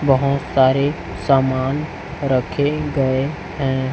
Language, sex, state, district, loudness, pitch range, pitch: Hindi, male, Chhattisgarh, Raipur, -19 LUFS, 130-145 Hz, 135 Hz